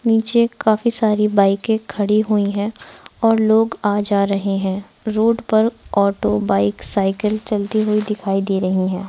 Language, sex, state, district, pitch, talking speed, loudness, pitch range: Hindi, female, Bihar, Araria, 210 Hz, 160 wpm, -18 LUFS, 195-220 Hz